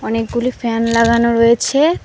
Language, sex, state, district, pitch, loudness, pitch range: Bengali, female, West Bengal, Alipurduar, 235 Hz, -14 LUFS, 230-245 Hz